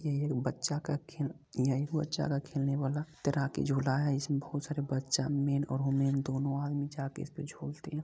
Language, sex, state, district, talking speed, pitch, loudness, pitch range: Angika, male, Bihar, Begusarai, 230 wpm, 140 Hz, -34 LUFS, 135-150 Hz